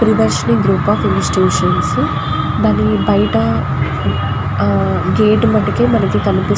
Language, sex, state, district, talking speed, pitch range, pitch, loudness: Telugu, female, Andhra Pradesh, Guntur, 110 wpm, 100-115 Hz, 105 Hz, -14 LUFS